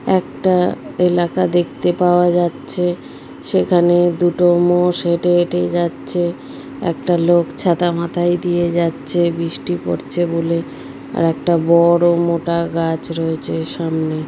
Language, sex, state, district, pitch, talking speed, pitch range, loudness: Bengali, female, West Bengal, Purulia, 175 Hz, 115 wpm, 170-175 Hz, -17 LUFS